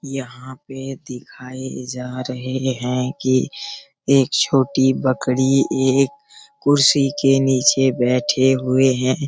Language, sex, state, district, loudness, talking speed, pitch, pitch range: Hindi, male, Bihar, Araria, -18 LUFS, 110 wpm, 130 Hz, 130-135 Hz